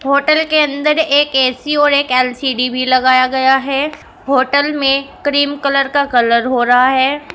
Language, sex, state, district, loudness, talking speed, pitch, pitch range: Hindi, female, Uttar Pradesh, Shamli, -13 LUFS, 170 wpm, 275 Hz, 255-290 Hz